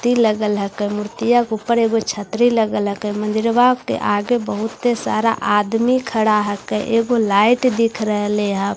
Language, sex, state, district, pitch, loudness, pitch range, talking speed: Hindi, female, Bihar, Katihar, 220 Hz, -18 LUFS, 210-235 Hz, 165 wpm